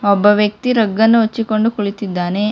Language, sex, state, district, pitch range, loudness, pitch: Kannada, female, Karnataka, Bangalore, 200-225 Hz, -15 LUFS, 210 Hz